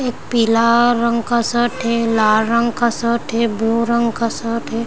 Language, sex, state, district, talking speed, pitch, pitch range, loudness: Hindi, female, Chhattisgarh, Raigarh, 195 wpm, 235 Hz, 230-235 Hz, -17 LUFS